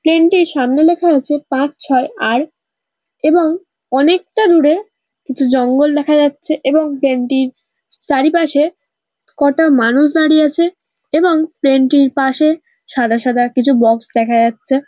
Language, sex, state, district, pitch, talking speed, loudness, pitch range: Bengali, female, West Bengal, North 24 Parganas, 290 Hz, 130 wpm, -13 LUFS, 265-320 Hz